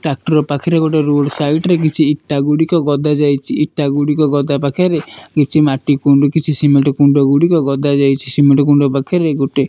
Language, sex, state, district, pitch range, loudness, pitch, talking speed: Odia, male, Odisha, Nuapada, 140-155 Hz, -13 LUFS, 145 Hz, 165 wpm